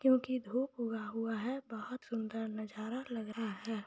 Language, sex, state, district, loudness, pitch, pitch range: Hindi, female, Jharkhand, Sahebganj, -39 LUFS, 225 Hz, 220-250 Hz